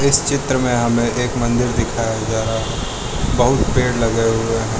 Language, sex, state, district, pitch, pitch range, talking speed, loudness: Hindi, male, Arunachal Pradesh, Lower Dibang Valley, 115 Hz, 115-125 Hz, 190 wpm, -18 LUFS